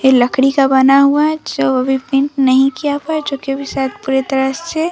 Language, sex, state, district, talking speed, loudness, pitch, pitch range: Hindi, female, Bihar, Vaishali, 255 wpm, -14 LUFS, 270 Hz, 265-285 Hz